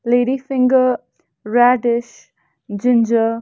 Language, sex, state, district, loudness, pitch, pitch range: English, female, Haryana, Rohtak, -16 LUFS, 240 Hz, 230-250 Hz